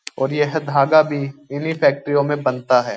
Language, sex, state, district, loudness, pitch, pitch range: Hindi, male, Uttar Pradesh, Jyotiba Phule Nagar, -18 LUFS, 145 Hz, 135-150 Hz